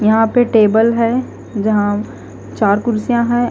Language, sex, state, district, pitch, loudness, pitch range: Hindi, female, Punjab, Fazilka, 225 Hz, -15 LUFS, 210-240 Hz